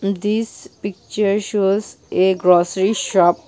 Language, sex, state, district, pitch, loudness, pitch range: English, female, Nagaland, Dimapur, 200 Hz, -18 LUFS, 185-205 Hz